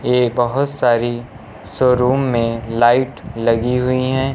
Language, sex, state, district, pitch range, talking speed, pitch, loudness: Hindi, male, Uttar Pradesh, Lucknow, 115-130 Hz, 125 wpm, 125 Hz, -17 LUFS